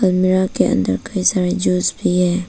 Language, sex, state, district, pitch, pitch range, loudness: Hindi, female, Arunachal Pradesh, Papum Pare, 185 Hz, 180-190 Hz, -17 LUFS